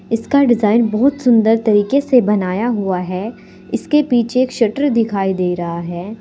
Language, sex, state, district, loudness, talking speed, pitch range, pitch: Hindi, female, Uttar Pradesh, Saharanpur, -16 LUFS, 165 wpm, 195-250 Hz, 225 Hz